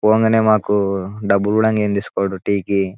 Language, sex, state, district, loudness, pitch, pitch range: Telugu, male, Telangana, Nalgonda, -17 LUFS, 100 Hz, 100-110 Hz